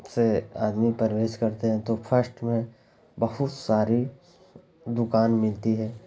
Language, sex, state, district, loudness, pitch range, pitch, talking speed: Hindi, male, Bihar, Lakhisarai, -26 LUFS, 110-120 Hz, 115 Hz, 130 wpm